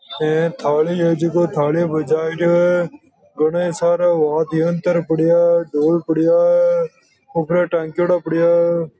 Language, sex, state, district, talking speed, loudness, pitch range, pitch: Marwari, male, Rajasthan, Nagaur, 135 wpm, -17 LUFS, 160-175 Hz, 170 Hz